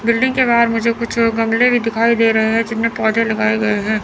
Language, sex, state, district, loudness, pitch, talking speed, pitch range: Hindi, female, Chandigarh, Chandigarh, -15 LUFS, 230 Hz, 240 wpm, 220-235 Hz